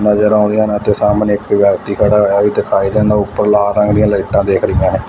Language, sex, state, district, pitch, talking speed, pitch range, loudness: Punjabi, male, Punjab, Fazilka, 105 Hz, 225 wpm, 100-105 Hz, -12 LUFS